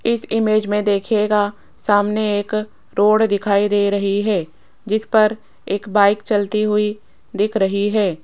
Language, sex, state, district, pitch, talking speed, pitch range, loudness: Hindi, female, Rajasthan, Jaipur, 210 Hz, 140 wpm, 200-215 Hz, -18 LUFS